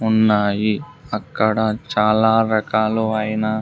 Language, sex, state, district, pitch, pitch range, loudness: Telugu, male, Andhra Pradesh, Sri Satya Sai, 110 Hz, 105-110 Hz, -19 LUFS